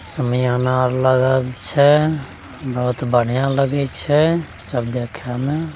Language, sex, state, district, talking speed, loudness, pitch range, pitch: Angika, male, Bihar, Begusarai, 115 wpm, -18 LUFS, 125-140 Hz, 130 Hz